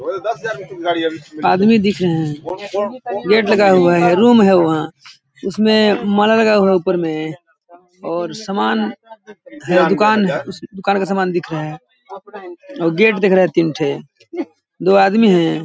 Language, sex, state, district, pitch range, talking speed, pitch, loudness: Hindi, male, Chhattisgarh, Balrampur, 170-215 Hz, 150 wpm, 195 Hz, -15 LUFS